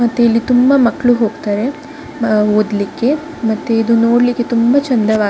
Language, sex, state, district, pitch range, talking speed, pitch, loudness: Kannada, female, Karnataka, Dakshina Kannada, 220-255 Hz, 135 wpm, 235 Hz, -14 LUFS